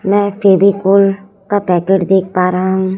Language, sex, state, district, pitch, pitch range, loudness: Hindi, male, Chhattisgarh, Raipur, 195 Hz, 190-200 Hz, -12 LUFS